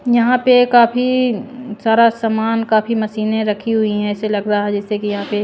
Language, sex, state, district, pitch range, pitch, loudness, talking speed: Hindi, female, Punjab, Pathankot, 210-240 Hz, 220 Hz, -16 LUFS, 200 wpm